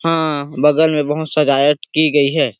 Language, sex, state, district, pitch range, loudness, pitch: Hindi, male, Chhattisgarh, Sarguja, 145-155 Hz, -15 LUFS, 150 Hz